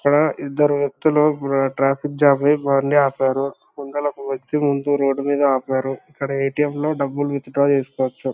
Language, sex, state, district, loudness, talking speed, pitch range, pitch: Telugu, male, Andhra Pradesh, Anantapur, -20 LUFS, 150 wpm, 135-145 Hz, 140 Hz